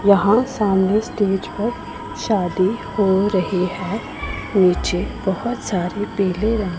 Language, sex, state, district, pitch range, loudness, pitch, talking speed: Hindi, female, Punjab, Pathankot, 190-220 Hz, -20 LUFS, 200 Hz, 115 wpm